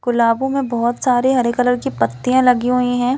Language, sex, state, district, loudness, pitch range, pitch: Hindi, female, Chhattisgarh, Balrampur, -16 LUFS, 240-255 Hz, 245 Hz